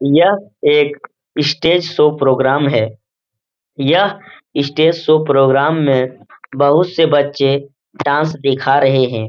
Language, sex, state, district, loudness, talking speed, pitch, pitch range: Hindi, male, Uttar Pradesh, Etah, -14 LUFS, 115 wpm, 145 Hz, 135-165 Hz